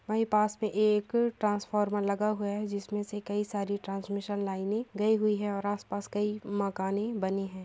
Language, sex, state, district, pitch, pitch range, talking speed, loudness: Hindi, female, Jharkhand, Sahebganj, 205 Hz, 200-210 Hz, 180 wpm, -31 LUFS